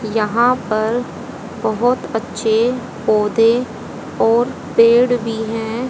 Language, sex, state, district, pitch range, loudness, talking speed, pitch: Hindi, female, Haryana, Rohtak, 220-245 Hz, -17 LUFS, 90 wpm, 230 Hz